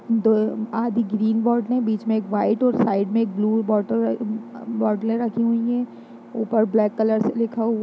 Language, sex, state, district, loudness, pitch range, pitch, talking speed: Hindi, female, Bihar, Darbhanga, -22 LUFS, 215-230 Hz, 225 Hz, 205 wpm